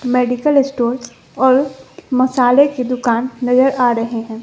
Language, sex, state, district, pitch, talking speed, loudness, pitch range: Hindi, female, Bihar, West Champaran, 250 Hz, 135 wpm, -15 LUFS, 240-265 Hz